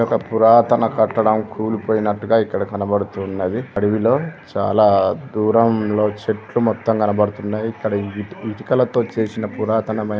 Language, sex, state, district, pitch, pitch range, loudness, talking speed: Telugu, male, Telangana, Karimnagar, 110 Hz, 105-115 Hz, -18 LUFS, 110 wpm